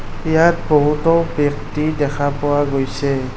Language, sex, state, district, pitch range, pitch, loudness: Assamese, male, Assam, Kamrup Metropolitan, 140-155 Hz, 145 Hz, -17 LUFS